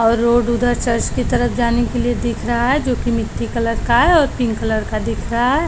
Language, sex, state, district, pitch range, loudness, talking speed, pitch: Hindi, female, Maharashtra, Chandrapur, 235-245 Hz, -17 LUFS, 245 wpm, 235 Hz